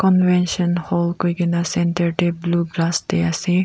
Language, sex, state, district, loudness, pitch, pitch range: Nagamese, female, Nagaland, Kohima, -19 LUFS, 175 Hz, 170-180 Hz